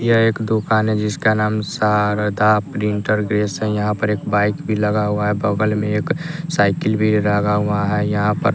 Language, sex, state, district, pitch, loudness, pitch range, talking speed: Hindi, male, Bihar, West Champaran, 105 Hz, -18 LUFS, 105-110 Hz, 195 wpm